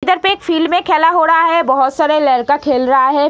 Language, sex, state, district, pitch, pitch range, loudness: Hindi, female, Bihar, Jamui, 310 Hz, 270-335 Hz, -12 LUFS